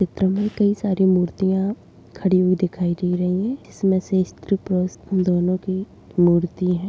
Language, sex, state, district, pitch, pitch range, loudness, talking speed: Kumaoni, female, Uttarakhand, Tehri Garhwal, 185 Hz, 180-195 Hz, -21 LUFS, 165 wpm